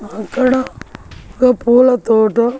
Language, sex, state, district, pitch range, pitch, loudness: Telugu, female, Andhra Pradesh, Annamaya, 220-255 Hz, 245 Hz, -13 LUFS